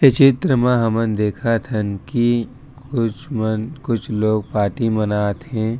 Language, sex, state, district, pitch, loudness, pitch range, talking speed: Chhattisgarhi, male, Chhattisgarh, Raigarh, 115 Hz, -19 LUFS, 110-125 Hz, 145 wpm